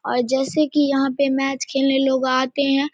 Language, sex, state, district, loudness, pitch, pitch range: Hindi, female, Bihar, Samastipur, -19 LUFS, 270 Hz, 265-280 Hz